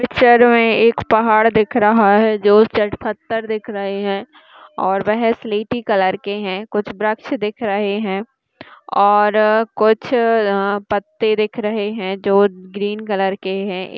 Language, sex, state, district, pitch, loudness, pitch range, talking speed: Hindi, female, Bihar, Madhepura, 210 Hz, -16 LUFS, 200-225 Hz, 160 wpm